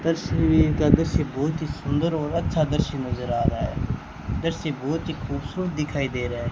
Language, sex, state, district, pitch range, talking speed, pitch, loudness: Hindi, male, Rajasthan, Bikaner, 120-155 Hz, 195 wpm, 140 Hz, -24 LUFS